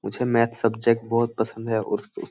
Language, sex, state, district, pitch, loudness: Hindi, male, Uttar Pradesh, Jyotiba Phule Nagar, 115 Hz, -24 LUFS